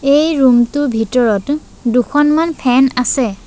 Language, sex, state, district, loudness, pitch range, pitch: Assamese, female, Assam, Sonitpur, -13 LUFS, 240-290 Hz, 260 Hz